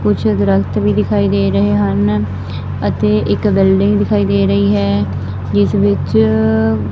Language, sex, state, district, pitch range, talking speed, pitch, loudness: Punjabi, female, Punjab, Fazilka, 100-105 Hz, 140 wpm, 100 Hz, -14 LUFS